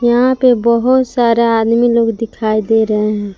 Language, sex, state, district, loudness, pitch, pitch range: Hindi, female, Jharkhand, Palamu, -13 LUFS, 230 Hz, 220-240 Hz